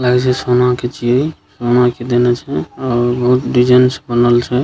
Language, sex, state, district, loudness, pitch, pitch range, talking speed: Maithili, male, Bihar, Begusarai, -14 LUFS, 125 Hz, 120-125 Hz, 195 wpm